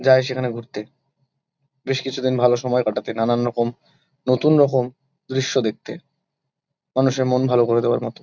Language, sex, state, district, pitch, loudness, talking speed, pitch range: Bengali, male, West Bengal, Kolkata, 130 Hz, -20 LUFS, 145 wpm, 125-140 Hz